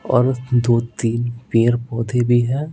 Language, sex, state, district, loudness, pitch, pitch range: Hindi, male, Bihar, Patna, -18 LUFS, 120 Hz, 115-125 Hz